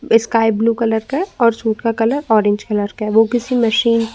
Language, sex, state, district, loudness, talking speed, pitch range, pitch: Hindi, female, Uttar Pradesh, Muzaffarnagar, -16 LUFS, 230 wpm, 220-235 Hz, 225 Hz